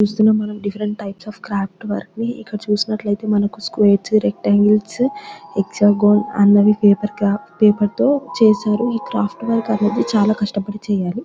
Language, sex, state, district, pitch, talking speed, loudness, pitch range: Telugu, female, Telangana, Nalgonda, 210 Hz, 130 wpm, -17 LUFS, 205-215 Hz